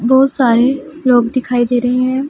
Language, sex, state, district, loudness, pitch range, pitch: Hindi, female, Punjab, Pathankot, -13 LUFS, 245-265 Hz, 255 Hz